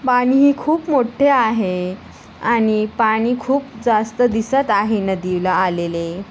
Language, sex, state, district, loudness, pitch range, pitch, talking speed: Marathi, female, Maharashtra, Nagpur, -17 LUFS, 190-255 Hz, 220 Hz, 125 wpm